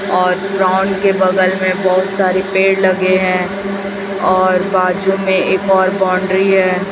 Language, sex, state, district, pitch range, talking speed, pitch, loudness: Hindi, female, Chhattisgarh, Raipur, 185-195 Hz, 145 wpm, 190 Hz, -14 LUFS